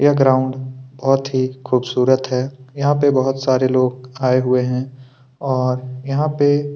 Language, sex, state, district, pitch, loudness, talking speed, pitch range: Hindi, male, Chhattisgarh, Kabirdham, 130 Hz, -18 LUFS, 160 wpm, 130-135 Hz